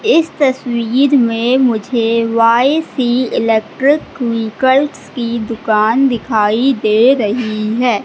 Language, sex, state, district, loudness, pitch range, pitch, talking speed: Hindi, female, Madhya Pradesh, Katni, -14 LUFS, 225-265 Hz, 240 Hz, 95 wpm